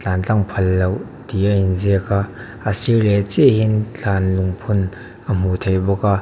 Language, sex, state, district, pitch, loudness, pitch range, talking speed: Mizo, male, Mizoram, Aizawl, 100 Hz, -17 LUFS, 95-110 Hz, 200 wpm